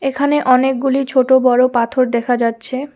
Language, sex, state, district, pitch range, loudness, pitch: Bengali, female, West Bengal, Alipurduar, 245-270 Hz, -14 LUFS, 260 Hz